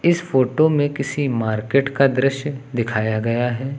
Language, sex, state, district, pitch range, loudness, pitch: Hindi, male, Uttar Pradesh, Lucknow, 120-140 Hz, -20 LUFS, 135 Hz